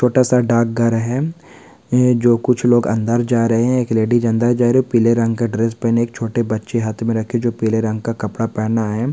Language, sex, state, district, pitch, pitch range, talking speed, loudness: Hindi, male, Uttar Pradesh, Etah, 115 Hz, 115-120 Hz, 245 wpm, -17 LUFS